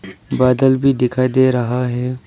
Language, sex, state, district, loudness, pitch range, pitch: Hindi, male, Arunachal Pradesh, Lower Dibang Valley, -16 LUFS, 125-130 Hz, 130 Hz